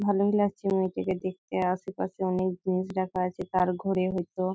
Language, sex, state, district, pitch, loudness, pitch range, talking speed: Bengali, female, West Bengal, Malda, 185 Hz, -29 LUFS, 185-190 Hz, 160 wpm